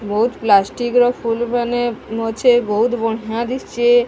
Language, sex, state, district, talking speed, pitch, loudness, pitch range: Odia, female, Odisha, Sambalpur, 130 wpm, 235 Hz, -17 LUFS, 225-240 Hz